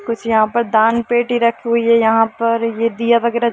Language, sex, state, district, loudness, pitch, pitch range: Hindi, female, Jharkhand, Sahebganj, -15 LUFS, 230 Hz, 225-235 Hz